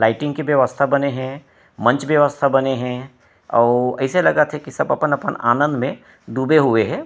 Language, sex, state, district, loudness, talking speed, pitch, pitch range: Chhattisgarhi, male, Chhattisgarh, Rajnandgaon, -18 LUFS, 180 wpm, 135 Hz, 125-145 Hz